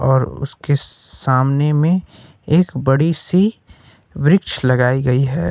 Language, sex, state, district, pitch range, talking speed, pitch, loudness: Hindi, male, Uttar Pradesh, Lucknow, 135-170 Hz, 120 wpm, 145 Hz, -17 LUFS